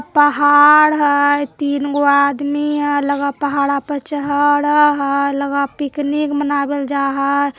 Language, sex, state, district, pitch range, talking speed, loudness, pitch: Hindi, female, Bihar, Begusarai, 280-290 Hz, 120 wpm, -15 LUFS, 285 Hz